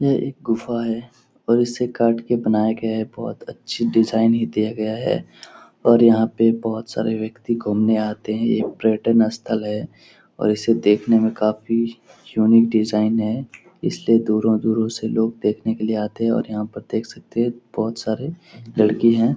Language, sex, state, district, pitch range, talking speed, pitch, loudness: Hindi, male, Bihar, Lakhisarai, 110-115 Hz, 185 wpm, 115 Hz, -20 LUFS